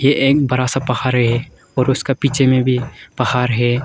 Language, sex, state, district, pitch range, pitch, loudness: Hindi, male, Arunachal Pradesh, Longding, 125-135 Hz, 130 Hz, -16 LUFS